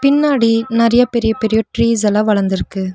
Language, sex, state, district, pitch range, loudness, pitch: Tamil, female, Tamil Nadu, Nilgiris, 210-235 Hz, -14 LUFS, 225 Hz